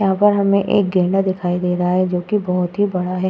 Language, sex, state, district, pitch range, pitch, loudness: Hindi, female, Uttar Pradesh, Budaun, 180-200 Hz, 185 Hz, -17 LUFS